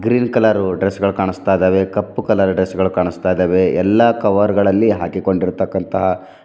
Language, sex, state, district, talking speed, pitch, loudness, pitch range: Kannada, male, Karnataka, Bidar, 150 wpm, 95 Hz, -16 LUFS, 95-105 Hz